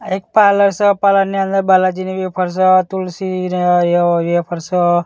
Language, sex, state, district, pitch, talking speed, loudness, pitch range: Gujarati, male, Gujarat, Gandhinagar, 185 Hz, 200 wpm, -14 LUFS, 175-195 Hz